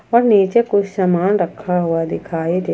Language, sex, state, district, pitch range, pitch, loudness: Hindi, female, Jharkhand, Ranchi, 175-210 Hz, 190 Hz, -17 LUFS